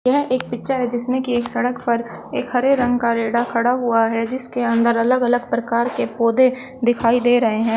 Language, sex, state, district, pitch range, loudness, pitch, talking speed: Hindi, female, Uttar Pradesh, Shamli, 235-255 Hz, -18 LUFS, 240 Hz, 210 wpm